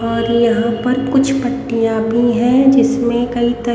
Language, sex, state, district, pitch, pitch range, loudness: Hindi, female, Haryana, Rohtak, 240 Hz, 235-255 Hz, -14 LUFS